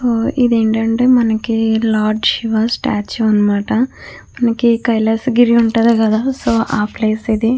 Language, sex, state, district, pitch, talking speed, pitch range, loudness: Telugu, female, Andhra Pradesh, Chittoor, 225 Hz, 120 wpm, 220-240 Hz, -14 LUFS